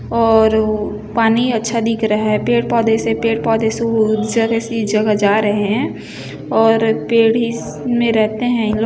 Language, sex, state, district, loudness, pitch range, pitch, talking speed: Hindi, female, Chhattisgarh, Bilaspur, -16 LUFS, 215-230 Hz, 225 Hz, 155 wpm